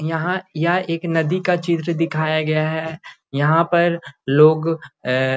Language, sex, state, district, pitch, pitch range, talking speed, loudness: Magahi, male, Bihar, Gaya, 160 Hz, 155-170 Hz, 155 wpm, -19 LUFS